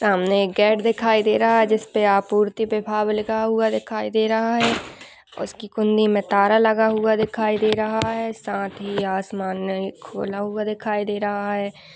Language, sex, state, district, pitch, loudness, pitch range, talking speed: Hindi, female, Uttar Pradesh, Budaun, 215 Hz, -21 LUFS, 200-220 Hz, 170 wpm